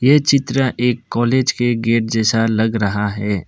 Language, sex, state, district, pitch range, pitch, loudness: Hindi, male, Assam, Kamrup Metropolitan, 110-130 Hz, 115 Hz, -17 LUFS